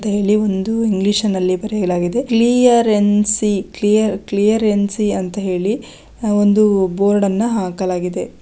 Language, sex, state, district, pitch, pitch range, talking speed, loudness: Kannada, female, Karnataka, Belgaum, 205 Hz, 190-215 Hz, 85 wpm, -16 LUFS